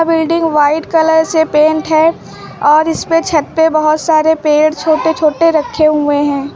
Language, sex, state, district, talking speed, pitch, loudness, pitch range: Hindi, female, Uttar Pradesh, Lucknow, 165 wpm, 315 Hz, -12 LUFS, 305-325 Hz